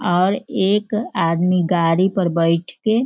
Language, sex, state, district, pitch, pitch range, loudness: Hindi, female, Bihar, Sitamarhi, 185 Hz, 170-205 Hz, -18 LUFS